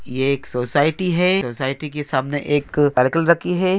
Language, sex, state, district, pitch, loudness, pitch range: Hindi, male, Andhra Pradesh, Anantapur, 145 Hz, -19 LUFS, 135-170 Hz